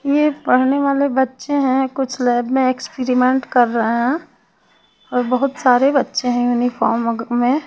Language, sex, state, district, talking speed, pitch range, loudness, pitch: Hindi, female, Chhattisgarh, Raipur, 150 wpm, 245-275 Hz, -17 LUFS, 255 Hz